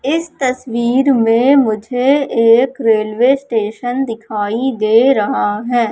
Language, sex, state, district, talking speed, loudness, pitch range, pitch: Hindi, female, Madhya Pradesh, Katni, 110 wpm, -14 LUFS, 225-265 Hz, 245 Hz